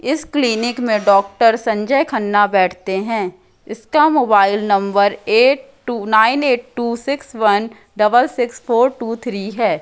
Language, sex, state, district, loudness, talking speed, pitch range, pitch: Hindi, female, Madhya Pradesh, Katni, -16 LUFS, 145 wpm, 205-255 Hz, 230 Hz